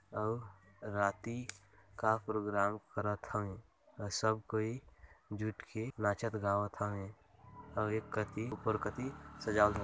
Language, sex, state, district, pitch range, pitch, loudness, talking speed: Hindi, male, Chhattisgarh, Balrampur, 100-110 Hz, 105 Hz, -38 LUFS, 130 wpm